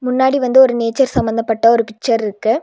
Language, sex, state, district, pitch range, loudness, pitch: Tamil, female, Tamil Nadu, Nilgiris, 225-260 Hz, -14 LUFS, 230 Hz